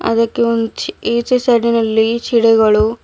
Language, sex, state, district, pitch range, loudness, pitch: Kannada, female, Karnataka, Bidar, 225-235 Hz, -14 LUFS, 230 Hz